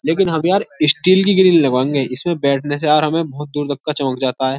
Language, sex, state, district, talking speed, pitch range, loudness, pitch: Hindi, male, Uttar Pradesh, Jyotiba Phule Nagar, 235 wpm, 140-165 Hz, -16 LUFS, 150 Hz